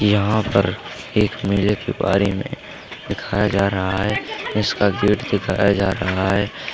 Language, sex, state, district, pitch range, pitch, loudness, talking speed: Hindi, male, Uttar Pradesh, Lalitpur, 95-105 Hz, 100 Hz, -20 LUFS, 150 wpm